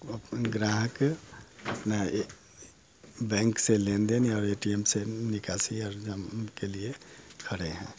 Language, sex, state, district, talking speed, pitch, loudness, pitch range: Hindi, male, Bihar, Muzaffarpur, 135 wpm, 105 Hz, -30 LUFS, 100-115 Hz